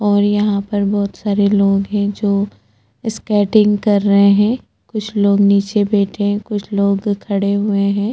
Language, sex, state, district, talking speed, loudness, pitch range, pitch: Hindi, female, Chhattisgarh, Bastar, 160 wpm, -16 LUFS, 200-210 Hz, 205 Hz